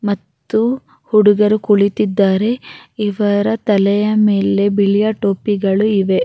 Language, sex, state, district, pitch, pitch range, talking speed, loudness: Kannada, female, Karnataka, Raichur, 205 Hz, 200-215 Hz, 85 wpm, -15 LUFS